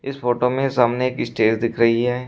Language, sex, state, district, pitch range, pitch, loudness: Hindi, male, Uttar Pradesh, Shamli, 115-125 Hz, 125 Hz, -19 LUFS